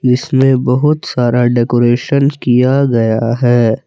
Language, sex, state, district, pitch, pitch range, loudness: Hindi, male, Jharkhand, Palamu, 125 Hz, 120-135 Hz, -12 LUFS